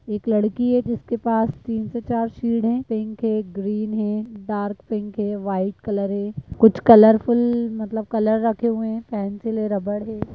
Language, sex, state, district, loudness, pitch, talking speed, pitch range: Hindi, male, Bihar, Lakhisarai, -21 LUFS, 220 Hz, 180 wpm, 210-230 Hz